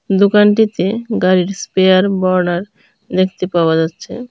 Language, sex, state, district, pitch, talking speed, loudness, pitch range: Bengali, female, Tripura, Dhalai, 190 Hz, 95 wpm, -14 LUFS, 185-210 Hz